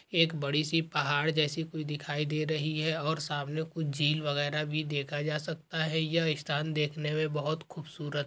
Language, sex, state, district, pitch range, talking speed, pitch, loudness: Hindi, male, Chhattisgarh, Balrampur, 150-160 Hz, 195 wpm, 155 Hz, -31 LUFS